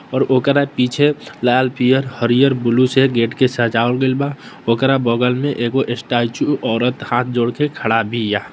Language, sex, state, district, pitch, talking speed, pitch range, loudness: Maithili, male, Bihar, Samastipur, 125 Hz, 160 wpm, 120-135 Hz, -17 LUFS